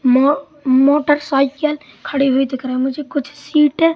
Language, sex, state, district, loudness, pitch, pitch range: Hindi, male, Madhya Pradesh, Katni, -16 LUFS, 285 Hz, 265-295 Hz